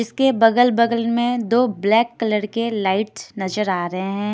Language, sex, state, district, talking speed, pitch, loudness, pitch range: Hindi, female, Bihar, Patna, 180 wpm, 225 Hz, -19 LUFS, 205-235 Hz